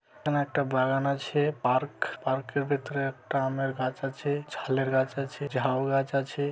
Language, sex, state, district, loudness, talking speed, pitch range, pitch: Bengali, male, West Bengal, Malda, -29 LUFS, 155 wpm, 130-145 Hz, 135 Hz